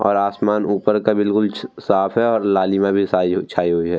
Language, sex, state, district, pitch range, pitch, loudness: Hindi, male, Bihar, Vaishali, 95-105 Hz, 100 Hz, -18 LUFS